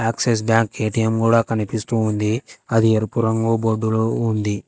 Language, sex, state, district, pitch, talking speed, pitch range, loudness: Telugu, female, Telangana, Hyderabad, 110 Hz, 140 wpm, 110-115 Hz, -19 LUFS